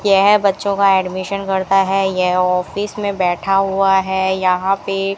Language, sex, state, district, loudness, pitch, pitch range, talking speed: Hindi, female, Rajasthan, Bikaner, -16 LUFS, 195 Hz, 190-195 Hz, 160 wpm